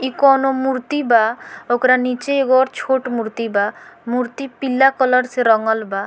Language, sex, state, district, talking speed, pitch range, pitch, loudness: Bhojpuri, female, Bihar, Muzaffarpur, 170 wpm, 230-265 Hz, 250 Hz, -17 LUFS